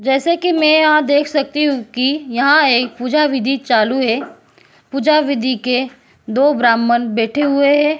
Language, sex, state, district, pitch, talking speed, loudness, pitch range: Hindi, female, Uttar Pradesh, Jyotiba Phule Nagar, 275 Hz, 165 wpm, -15 LUFS, 245-295 Hz